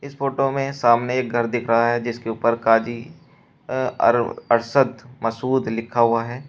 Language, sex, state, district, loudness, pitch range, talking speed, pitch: Hindi, male, Uttar Pradesh, Shamli, -21 LUFS, 115-130 Hz, 140 wpm, 120 Hz